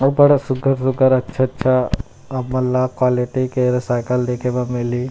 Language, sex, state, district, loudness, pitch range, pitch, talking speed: Chhattisgarhi, male, Chhattisgarh, Rajnandgaon, -18 LUFS, 125-130 Hz, 125 Hz, 150 wpm